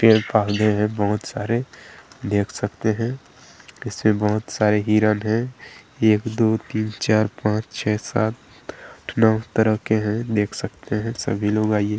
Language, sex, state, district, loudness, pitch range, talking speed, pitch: Hindi, male, Chhattisgarh, Sarguja, -21 LUFS, 105-110 Hz, 165 wpm, 110 Hz